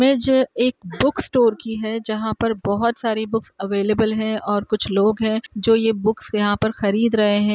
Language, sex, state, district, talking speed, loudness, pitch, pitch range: Hindi, female, Bihar, Araria, 200 wpm, -20 LUFS, 220 Hz, 210-230 Hz